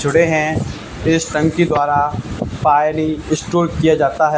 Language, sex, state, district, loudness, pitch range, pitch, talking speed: Hindi, male, Haryana, Charkhi Dadri, -16 LUFS, 145-160 Hz, 155 Hz, 165 wpm